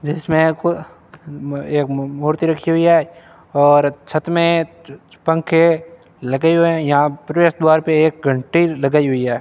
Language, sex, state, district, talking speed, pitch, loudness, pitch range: Hindi, male, Rajasthan, Bikaner, 155 wpm, 155 Hz, -16 LUFS, 145-165 Hz